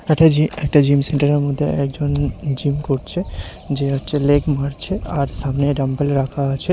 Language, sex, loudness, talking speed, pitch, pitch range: Bengali, male, -18 LUFS, 170 wpm, 145 Hz, 140-145 Hz